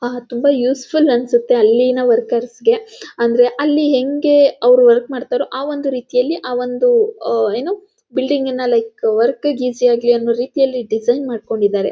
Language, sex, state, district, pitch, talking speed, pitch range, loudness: Kannada, female, Karnataka, Mysore, 255 Hz, 145 wpm, 240-295 Hz, -15 LUFS